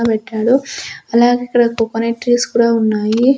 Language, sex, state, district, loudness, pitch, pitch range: Telugu, female, Andhra Pradesh, Sri Satya Sai, -15 LUFS, 235 Hz, 225-245 Hz